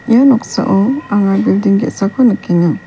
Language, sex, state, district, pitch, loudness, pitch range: Garo, female, Meghalaya, West Garo Hills, 205 Hz, -12 LUFS, 195-245 Hz